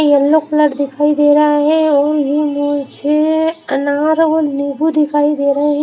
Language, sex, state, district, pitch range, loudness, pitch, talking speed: Hindi, female, Haryana, Rohtak, 285-305 Hz, -14 LUFS, 295 Hz, 155 wpm